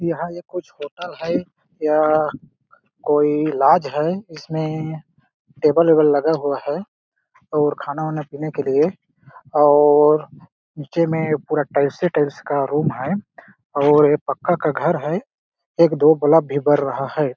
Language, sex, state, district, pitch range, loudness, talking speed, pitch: Hindi, male, Chhattisgarh, Balrampur, 145-165 Hz, -19 LUFS, 150 wpm, 155 Hz